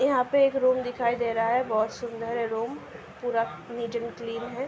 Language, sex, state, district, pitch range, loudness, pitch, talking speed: Hindi, female, Uttar Pradesh, Hamirpur, 230-255 Hz, -27 LUFS, 235 Hz, 215 wpm